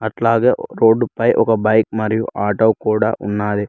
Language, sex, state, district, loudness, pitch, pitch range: Telugu, male, Telangana, Mahabubabad, -16 LUFS, 110 Hz, 105-115 Hz